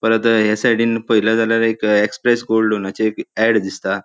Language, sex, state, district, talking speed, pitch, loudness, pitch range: Konkani, male, Goa, North and South Goa, 180 wpm, 110 Hz, -16 LUFS, 105-115 Hz